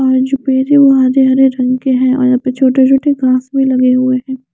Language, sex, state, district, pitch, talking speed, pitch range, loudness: Hindi, female, Chandigarh, Chandigarh, 260 Hz, 240 wpm, 255-265 Hz, -11 LUFS